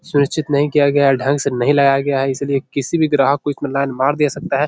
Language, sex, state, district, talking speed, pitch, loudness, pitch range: Hindi, male, Bihar, Jahanabad, 280 wpm, 140 Hz, -16 LUFS, 140-145 Hz